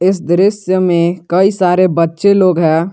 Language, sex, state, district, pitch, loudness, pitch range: Hindi, male, Jharkhand, Garhwa, 180 Hz, -12 LUFS, 170-190 Hz